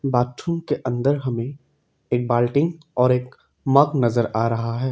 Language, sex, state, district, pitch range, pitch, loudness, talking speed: Hindi, male, Assam, Kamrup Metropolitan, 120-140 Hz, 125 Hz, -21 LUFS, 160 wpm